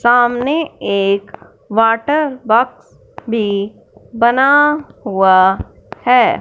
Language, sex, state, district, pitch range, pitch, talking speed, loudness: Hindi, male, Punjab, Fazilka, 205-270 Hz, 235 Hz, 75 wpm, -14 LUFS